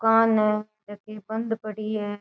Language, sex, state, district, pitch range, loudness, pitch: Rajasthani, female, Rajasthan, Nagaur, 210-220 Hz, -25 LUFS, 215 Hz